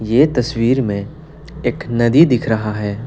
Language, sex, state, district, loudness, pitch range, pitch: Hindi, male, West Bengal, Darjeeling, -16 LUFS, 110-150 Hz, 120 Hz